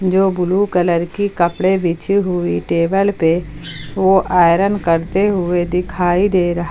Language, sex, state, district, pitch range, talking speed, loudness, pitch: Hindi, female, Jharkhand, Palamu, 170-190 Hz, 145 wpm, -16 LUFS, 180 Hz